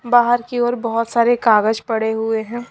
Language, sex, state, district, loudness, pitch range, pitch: Hindi, female, Himachal Pradesh, Shimla, -17 LUFS, 225-240 Hz, 235 Hz